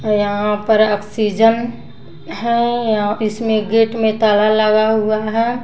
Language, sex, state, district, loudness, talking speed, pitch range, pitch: Hindi, female, Bihar, West Champaran, -16 LUFS, 140 wpm, 215-225 Hz, 215 Hz